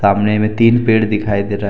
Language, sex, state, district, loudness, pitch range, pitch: Hindi, male, Jharkhand, Deoghar, -14 LUFS, 100-110 Hz, 105 Hz